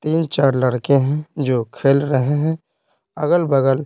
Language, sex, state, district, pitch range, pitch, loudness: Hindi, male, Bihar, Patna, 135-155 Hz, 140 Hz, -18 LUFS